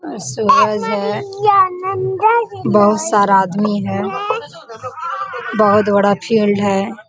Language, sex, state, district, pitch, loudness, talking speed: Hindi, female, Jharkhand, Sahebganj, 215 Hz, -15 LUFS, 95 wpm